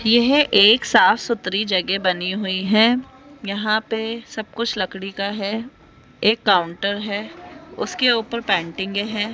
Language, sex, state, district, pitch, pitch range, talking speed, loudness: Hindi, female, Rajasthan, Jaipur, 215 Hz, 195-230 Hz, 140 wpm, -19 LUFS